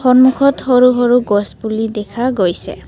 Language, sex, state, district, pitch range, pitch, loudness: Assamese, female, Assam, Kamrup Metropolitan, 215-255 Hz, 245 Hz, -13 LUFS